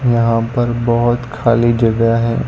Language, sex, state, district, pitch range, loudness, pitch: Hindi, male, Gujarat, Gandhinagar, 115-120 Hz, -15 LUFS, 115 Hz